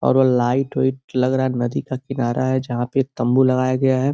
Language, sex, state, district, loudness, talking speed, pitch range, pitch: Hindi, male, Uttar Pradesh, Gorakhpur, -20 LUFS, 245 wpm, 125-130 Hz, 130 Hz